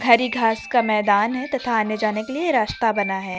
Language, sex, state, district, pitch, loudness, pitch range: Hindi, female, Uttar Pradesh, Lucknow, 225 Hz, -20 LUFS, 215-250 Hz